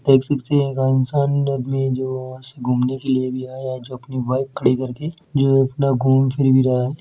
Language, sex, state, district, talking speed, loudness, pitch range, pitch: Hindi, male, Uttar Pradesh, Etah, 170 wpm, -20 LUFS, 130-135 Hz, 130 Hz